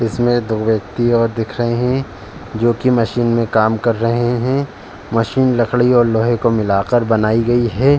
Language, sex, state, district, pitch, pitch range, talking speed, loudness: Hindi, male, Uttar Pradesh, Jalaun, 115 Hz, 110-120 Hz, 180 wpm, -16 LUFS